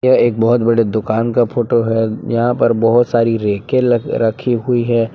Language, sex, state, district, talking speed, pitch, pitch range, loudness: Hindi, male, Jharkhand, Palamu, 200 wpm, 115 Hz, 115-120 Hz, -15 LUFS